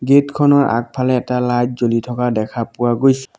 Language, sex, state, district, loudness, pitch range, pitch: Assamese, male, Assam, Sonitpur, -16 LUFS, 120-135 Hz, 125 Hz